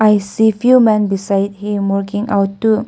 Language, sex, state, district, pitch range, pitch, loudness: English, female, Nagaland, Kohima, 200-220 Hz, 205 Hz, -14 LUFS